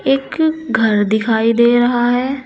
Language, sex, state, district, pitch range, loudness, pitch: Hindi, female, Uttar Pradesh, Saharanpur, 225-270 Hz, -15 LUFS, 240 Hz